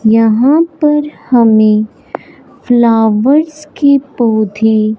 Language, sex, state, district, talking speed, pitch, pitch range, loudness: Hindi, male, Punjab, Fazilka, 70 wpm, 235 Hz, 220-285 Hz, -10 LUFS